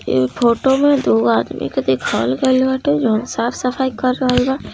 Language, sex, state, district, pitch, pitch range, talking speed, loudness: Hindi, female, Bihar, East Champaran, 255 Hz, 240-265 Hz, 150 wpm, -16 LUFS